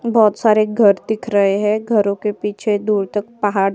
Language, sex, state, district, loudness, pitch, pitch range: Hindi, female, Uttar Pradesh, Jyotiba Phule Nagar, -17 LUFS, 210 Hz, 200-215 Hz